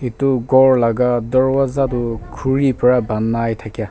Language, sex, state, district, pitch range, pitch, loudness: Nagamese, male, Nagaland, Kohima, 115-130 Hz, 125 Hz, -16 LUFS